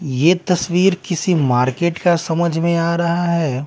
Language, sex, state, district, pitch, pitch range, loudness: Hindi, male, Bihar, Patna, 170 Hz, 165-175 Hz, -17 LUFS